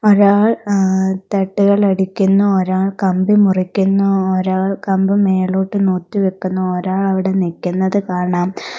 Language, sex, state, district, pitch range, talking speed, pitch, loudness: Malayalam, female, Kerala, Kollam, 185-200 Hz, 110 wpm, 190 Hz, -15 LUFS